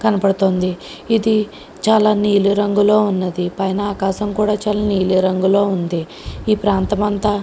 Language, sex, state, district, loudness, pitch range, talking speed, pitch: Telugu, female, Andhra Pradesh, Krishna, -17 LUFS, 190-210 Hz, 115 wpm, 205 Hz